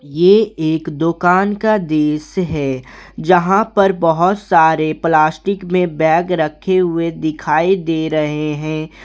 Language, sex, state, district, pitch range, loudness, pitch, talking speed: Hindi, male, Jharkhand, Garhwa, 155-185 Hz, -15 LUFS, 165 Hz, 125 wpm